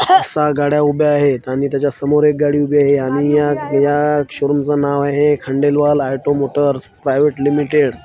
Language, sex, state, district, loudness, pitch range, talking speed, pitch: Marathi, male, Maharashtra, Washim, -15 LUFS, 140-145 Hz, 185 wpm, 145 Hz